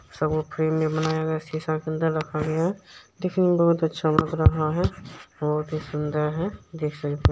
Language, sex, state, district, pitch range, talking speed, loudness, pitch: Maithili, male, Bihar, Supaul, 155-160 Hz, 205 wpm, -25 LUFS, 155 Hz